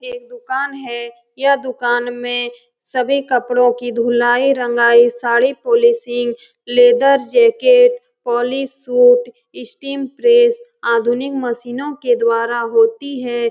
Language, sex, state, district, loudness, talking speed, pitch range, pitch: Hindi, female, Bihar, Saran, -15 LUFS, 110 wpm, 240-275 Hz, 245 Hz